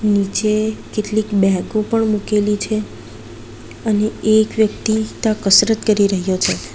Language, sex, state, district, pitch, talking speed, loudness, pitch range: Gujarati, female, Gujarat, Valsad, 210 Hz, 125 wpm, -17 LUFS, 190-215 Hz